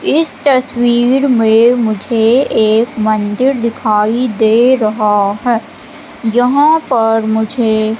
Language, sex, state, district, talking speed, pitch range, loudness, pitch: Hindi, female, Madhya Pradesh, Katni, 95 wpm, 220-250 Hz, -12 LUFS, 230 Hz